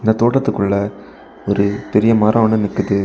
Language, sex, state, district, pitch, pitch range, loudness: Tamil, male, Tamil Nadu, Kanyakumari, 105 Hz, 100-110 Hz, -16 LUFS